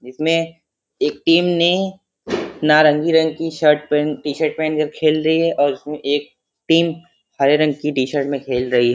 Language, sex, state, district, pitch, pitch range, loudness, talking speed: Hindi, male, Uttar Pradesh, Varanasi, 155 Hz, 145-165 Hz, -18 LUFS, 175 wpm